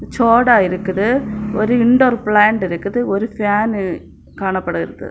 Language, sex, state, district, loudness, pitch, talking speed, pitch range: Tamil, female, Tamil Nadu, Kanyakumari, -16 LUFS, 210 Hz, 105 wpm, 195-235 Hz